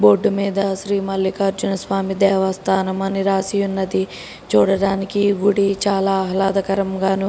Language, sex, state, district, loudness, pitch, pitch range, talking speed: Telugu, female, Telangana, Karimnagar, -19 LUFS, 195 Hz, 190-195 Hz, 115 wpm